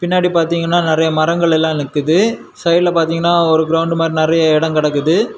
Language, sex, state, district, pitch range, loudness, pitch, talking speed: Tamil, male, Tamil Nadu, Kanyakumari, 160-170 Hz, -14 LUFS, 165 Hz, 155 wpm